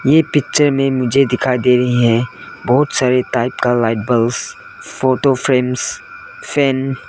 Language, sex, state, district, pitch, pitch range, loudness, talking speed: Hindi, male, Arunachal Pradesh, Lower Dibang Valley, 130 Hz, 125-140 Hz, -15 LUFS, 150 wpm